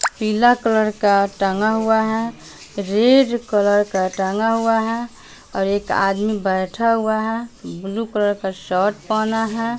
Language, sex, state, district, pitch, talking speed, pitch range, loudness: Hindi, female, Bihar, West Champaran, 215 Hz, 145 wpm, 200-225 Hz, -19 LUFS